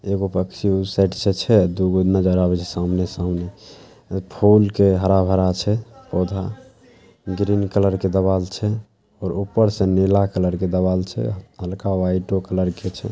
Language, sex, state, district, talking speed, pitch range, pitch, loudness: Maithili, male, Bihar, Saharsa, 160 wpm, 90-100 Hz, 95 Hz, -20 LUFS